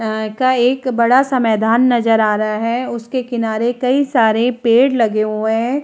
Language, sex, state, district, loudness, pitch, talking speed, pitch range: Hindi, female, Uttar Pradesh, Jalaun, -15 LUFS, 235 Hz, 185 wpm, 220-255 Hz